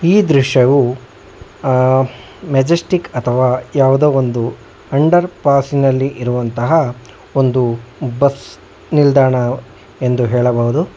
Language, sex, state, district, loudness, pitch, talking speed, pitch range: Kannada, male, Karnataka, Bangalore, -14 LUFS, 130 Hz, 75 wpm, 125-140 Hz